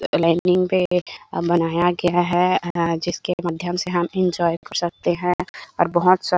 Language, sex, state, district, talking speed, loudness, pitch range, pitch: Hindi, female, Chhattisgarh, Bilaspur, 170 wpm, -21 LUFS, 170-180 Hz, 175 Hz